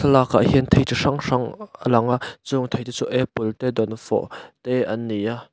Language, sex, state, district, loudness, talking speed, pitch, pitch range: Mizo, male, Mizoram, Aizawl, -22 LUFS, 240 wpm, 125 Hz, 115-130 Hz